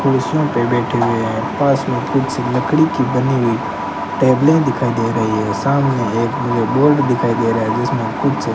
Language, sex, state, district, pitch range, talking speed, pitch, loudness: Hindi, male, Rajasthan, Bikaner, 110-140 Hz, 190 wpm, 125 Hz, -16 LUFS